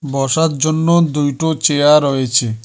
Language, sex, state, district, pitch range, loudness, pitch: Bengali, male, West Bengal, Cooch Behar, 140-160 Hz, -14 LUFS, 150 Hz